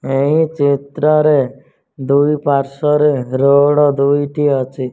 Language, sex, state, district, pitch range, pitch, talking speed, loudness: Odia, male, Odisha, Nuapada, 135-150 Hz, 140 Hz, 100 wpm, -14 LUFS